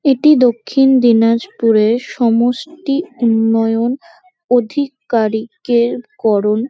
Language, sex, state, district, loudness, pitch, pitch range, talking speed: Bengali, female, West Bengal, North 24 Parganas, -14 LUFS, 240 Hz, 225-270 Hz, 65 wpm